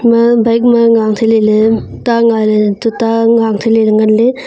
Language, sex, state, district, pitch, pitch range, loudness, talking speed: Wancho, female, Arunachal Pradesh, Longding, 225 Hz, 220-230 Hz, -10 LUFS, 215 wpm